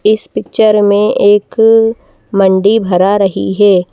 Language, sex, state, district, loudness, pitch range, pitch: Hindi, female, Madhya Pradesh, Bhopal, -10 LUFS, 195-215 Hz, 205 Hz